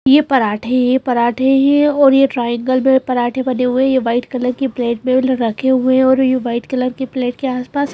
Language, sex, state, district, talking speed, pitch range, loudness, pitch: Hindi, female, Madhya Pradesh, Bhopal, 225 wpm, 250-265 Hz, -15 LUFS, 255 Hz